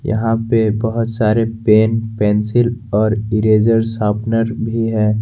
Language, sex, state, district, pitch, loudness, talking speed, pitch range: Hindi, male, Jharkhand, Garhwa, 110 Hz, -16 LUFS, 125 wpm, 110-115 Hz